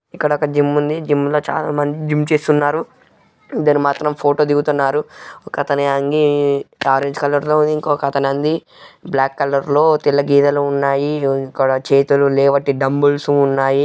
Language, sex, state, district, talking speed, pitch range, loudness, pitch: Telugu, male, Telangana, Karimnagar, 125 wpm, 140-150 Hz, -16 LUFS, 145 Hz